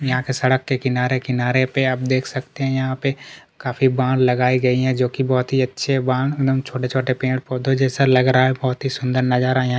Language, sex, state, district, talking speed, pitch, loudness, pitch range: Hindi, male, Chhattisgarh, Kabirdham, 220 wpm, 130 Hz, -19 LUFS, 125-135 Hz